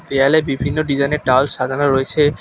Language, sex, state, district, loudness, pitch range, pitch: Bengali, male, West Bengal, Alipurduar, -16 LUFS, 135-150 Hz, 140 Hz